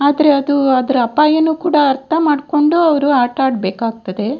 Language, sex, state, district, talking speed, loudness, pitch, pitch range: Kannada, female, Karnataka, Dakshina Kannada, 125 wpm, -14 LUFS, 285 Hz, 255-305 Hz